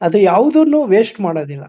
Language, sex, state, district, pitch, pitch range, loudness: Kannada, male, Karnataka, Chamarajanagar, 200 Hz, 170-230 Hz, -13 LUFS